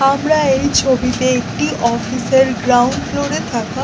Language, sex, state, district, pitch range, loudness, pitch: Bengali, female, West Bengal, North 24 Parganas, 245-270 Hz, -15 LUFS, 255 Hz